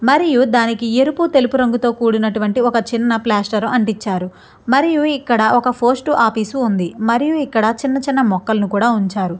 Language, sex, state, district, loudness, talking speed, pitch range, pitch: Telugu, female, Andhra Pradesh, Chittoor, -16 LUFS, 145 wpm, 220-265 Hz, 235 Hz